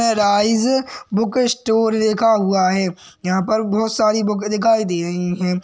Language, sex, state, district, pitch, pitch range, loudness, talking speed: Hindi, male, Uttarakhand, Tehri Garhwal, 215 Hz, 185-225 Hz, -18 LUFS, 160 wpm